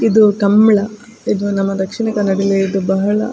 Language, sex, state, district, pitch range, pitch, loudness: Kannada, female, Karnataka, Dakshina Kannada, 195-215 Hz, 205 Hz, -15 LUFS